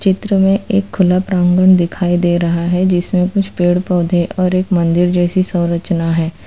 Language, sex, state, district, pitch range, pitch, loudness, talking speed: Hindi, female, Gujarat, Valsad, 175-185 Hz, 180 Hz, -14 LUFS, 175 wpm